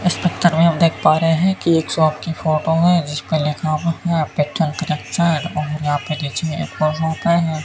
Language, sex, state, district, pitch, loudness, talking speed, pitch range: Hindi, male, Rajasthan, Bikaner, 160 Hz, -18 LUFS, 165 wpm, 155-170 Hz